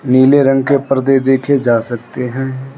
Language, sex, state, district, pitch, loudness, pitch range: Hindi, male, Arunachal Pradesh, Lower Dibang Valley, 135 Hz, -13 LUFS, 130-135 Hz